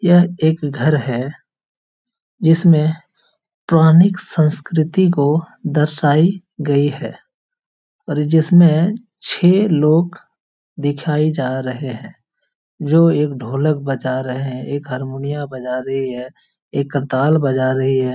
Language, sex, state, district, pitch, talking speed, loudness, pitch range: Hindi, male, Bihar, Jahanabad, 150 Hz, 115 wpm, -16 LUFS, 135-170 Hz